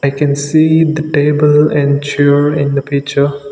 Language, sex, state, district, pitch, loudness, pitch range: English, male, Nagaland, Dimapur, 145 Hz, -12 LUFS, 140-150 Hz